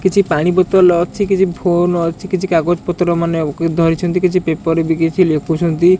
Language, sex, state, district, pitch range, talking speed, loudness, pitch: Odia, male, Odisha, Khordha, 165-185 Hz, 180 wpm, -15 LUFS, 175 Hz